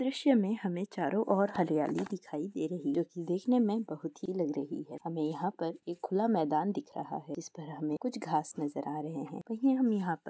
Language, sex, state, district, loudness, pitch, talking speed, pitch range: Hindi, female, Telangana, Nalgonda, -33 LUFS, 175 Hz, 235 wpm, 155-205 Hz